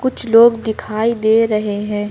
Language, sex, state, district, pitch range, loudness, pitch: Hindi, male, Uttar Pradesh, Lucknow, 210-230 Hz, -15 LUFS, 220 Hz